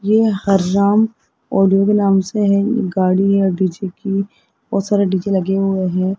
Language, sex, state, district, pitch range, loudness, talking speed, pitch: Hindi, male, Rajasthan, Jaipur, 190-200 Hz, -16 LUFS, 165 wpm, 195 Hz